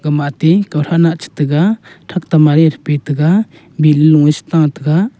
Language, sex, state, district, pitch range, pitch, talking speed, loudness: Wancho, male, Arunachal Pradesh, Longding, 150-170 Hz, 155 Hz, 160 wpm, -13 LUFS